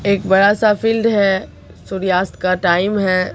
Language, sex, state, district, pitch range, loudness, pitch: Hindi, female, Bihar, Katihar, 185-205 Hz, -15 LUFS, 195 Hz